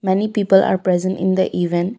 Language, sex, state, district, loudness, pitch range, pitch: English, female, Assam, Kamrup Metropolitan, -17 LUFS, 180-195 Hz, 190 Hz